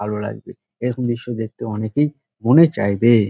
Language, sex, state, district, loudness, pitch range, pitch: Bengali, male, West Bengal, Dakshin Dinajpur, -19 LUFS, 110-125 Hz, 115 Hz